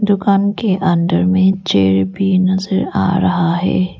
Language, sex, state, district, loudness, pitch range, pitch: Hindi, female, Arunachal Pradesh, Lower Dibang Valley, -15 LUFS, 170-195 Hz, 185 Hz